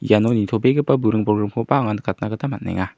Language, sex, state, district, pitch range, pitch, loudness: Garo, male, Meghalaya, South Garo Hills, 105-120 Hz, 110 Hz, -20 LUFS